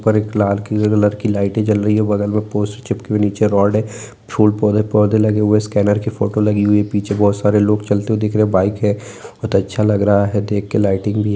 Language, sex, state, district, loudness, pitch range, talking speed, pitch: Hindi, male, Bihar, Gaya, -16 LUFS, 100-105 Hz, 265 wpm, 105 Hz